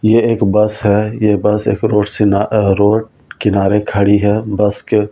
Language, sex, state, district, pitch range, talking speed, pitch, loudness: Hindi, male, Delhi, New Delhi, 100-110 Hz, 190 wpm, 105 Hz, -13 LUFS